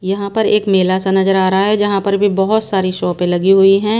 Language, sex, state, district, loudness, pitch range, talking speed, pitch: Hindi, female, Bihar, Katihar, -14 LUFS, 190-205 Hz, 270 wpm, 195 Hz